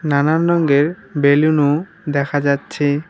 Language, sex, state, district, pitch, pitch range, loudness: Bengali, male, West Bengal, Alipurduar, 145 Hz, 145-160 Hz, -16 LUFS